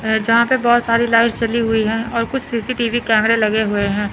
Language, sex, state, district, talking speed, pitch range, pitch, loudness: Hindi, female, Chandigarh, Chandigarh, 235 wpm, 220-235 Hz, 230 Hz, -16 LUFS